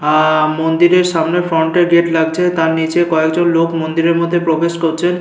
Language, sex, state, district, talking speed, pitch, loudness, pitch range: Bengali, male, West Bengal, Paschim Medinipur, 160 wpm, 165 Hz, -13 LUFS, 160-175 Hz